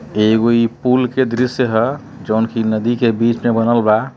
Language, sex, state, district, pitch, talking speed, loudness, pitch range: Bhojpuri, male, Uttar Pradesh, Deoria, 115 Hz, 200 wpm, -16 LUFS, 110-125 Hz